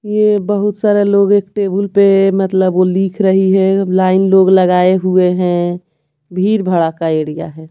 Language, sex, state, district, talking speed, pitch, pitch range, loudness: Hindi, female, Bihar, Patna, 170 wpm, 190 Hz, 180-200 Hz, -12 LUFS